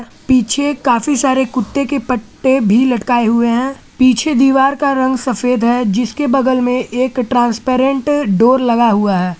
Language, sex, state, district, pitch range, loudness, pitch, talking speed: Hindi, male, Jharkhand, Garhwa, 235-270 Hz, -14 LUFS, 255 Hz, 160 wpm